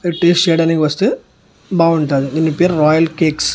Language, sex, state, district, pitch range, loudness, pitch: Telugu, male, Andhra Pradesh, Annamaya, 155-175 Hz, -14 LUFS, 165 Hz